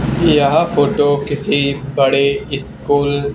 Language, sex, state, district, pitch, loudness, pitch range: Hindi, male, Haryana, Charkhi Dadri, 140 Hz, -15 LUFS, 140-145 Hz